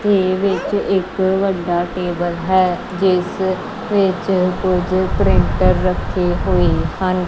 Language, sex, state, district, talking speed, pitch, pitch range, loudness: Punjabi, female, Punjab, Kapurthala, 105 wpm, 185 Hz, 180-190 Hz, -17 LUFS